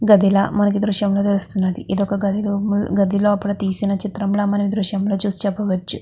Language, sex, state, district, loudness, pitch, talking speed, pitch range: Telugu, female, Andhra Pradesh, Guntur, -19 LUFS, 200 Hz, 180 wpm, 195-205 Hz